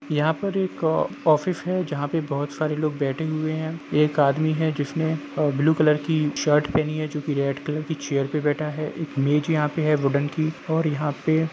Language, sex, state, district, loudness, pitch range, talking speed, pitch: Hindi, male, Jharkhand, Jamtara, -23 LUFS, 145-160 Hz, 215 wpm, 155 Hz